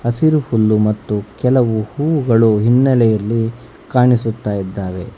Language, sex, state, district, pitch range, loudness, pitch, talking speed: Kannada, male, Karnataka, Bangalore, 105-125 Hz, -15 LUFS, 115 Hz, 80 wpm